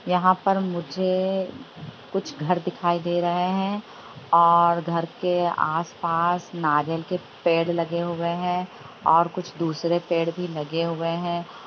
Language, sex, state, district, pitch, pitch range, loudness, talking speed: Hindi, female, Jharkhand, Sahebganj, 170 Hz, 165-180 Hz, -24 LUFS, 140 wpm